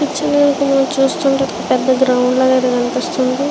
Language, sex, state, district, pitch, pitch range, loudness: Telugu, female, Andhra Pradesh, Srikakulam, 265 Hz, 255-275 Hz, -14 LUFS